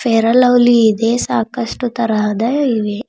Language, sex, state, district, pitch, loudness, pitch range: Kannada, female, Karnataka, Bidar, 230 Hz, -14 LUFS, 220-245 Hz